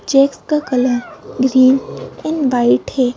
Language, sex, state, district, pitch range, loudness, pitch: Hindi, female, Madhya Pradesh, Bhopal, 250-280 Hz, -15 LUFS, 260 Hz